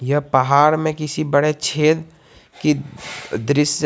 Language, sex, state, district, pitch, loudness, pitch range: Hindi, male, Jharkhand, Garhwa, 150 Hz, -18 LUFS, 145-155 Hz